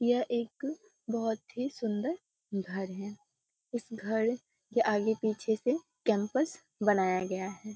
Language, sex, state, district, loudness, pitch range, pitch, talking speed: Hindi, female, Bihar, Muzaffarpur, -33 LUFS, 205-245 Hz, 220 Hz, 130 wpm